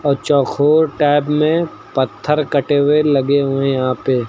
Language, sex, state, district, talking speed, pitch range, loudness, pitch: Hindi, male, Uttar Pradesh, Lucknow, 155 wpm, 135-150 Hz, -15 LUFS, 145 Hz